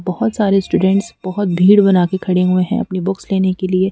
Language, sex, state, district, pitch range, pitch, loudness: Hindi, female, Madhya Pradesh, Bhopal, 185-200 Hz, 190 Hz, -15 LUFS